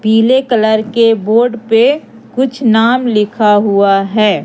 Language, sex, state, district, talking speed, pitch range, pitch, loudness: Hindi, female, Madhya Pradesh, Katni, 135 wpm, 210-240 Hz, 225 Hz, -11 LUFS